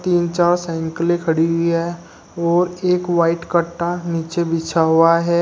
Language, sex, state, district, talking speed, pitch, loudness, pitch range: Hindi, male, Uttar Pradesh, Shamli, 155 wpm, 170 Hz, -18 LUFS, 165-175 Hz